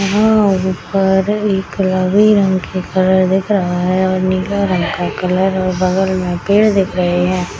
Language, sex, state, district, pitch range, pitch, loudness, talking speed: Hindi, female, Bihar, Samastipur, 185-195 Hz, 190 Hz, -14 LUFS, 175 wpm